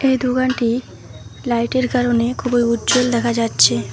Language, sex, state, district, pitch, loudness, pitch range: Bengali, female, West Bengal, Alipurduar, 240 Hz, -17 LUFS, 235-255 Hz